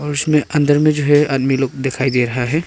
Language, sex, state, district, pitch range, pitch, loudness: Hindi, male, Arunachal Pradesh, Papum Pare, 135-150 Hz, 145 Hz, -16 LUFS